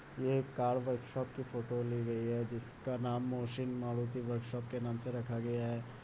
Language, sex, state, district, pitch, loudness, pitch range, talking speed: Hindi, male, Bihar, Muzaffarpur, 120 Hz, -38 LUFS, 120-125 Hz, 200 wpm